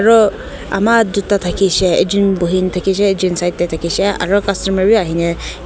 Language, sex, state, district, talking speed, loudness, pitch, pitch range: Nagamese, female, Nagaland, Kohima, 160 wpm, -14 LUFS, 195 Hz, 180-200 Hz